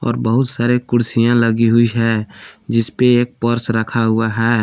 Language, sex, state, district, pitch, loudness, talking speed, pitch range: Hindi, male, Jharkhand, Palamu, 115 Hz, -15 LUFS, 155 wpm, 115-120 Hz